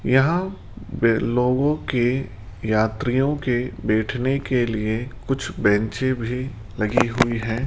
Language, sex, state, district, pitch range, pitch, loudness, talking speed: Hindi, male, Rajasthan, Jaipur, 110-130 Hz, 120 Hz, -22 LUFS, 115 wpm